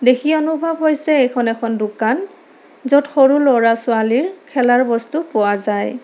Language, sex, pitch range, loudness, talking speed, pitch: Assamese, female, 230-310 Hz, -16 LUFS, 130 wpm, 255 Hz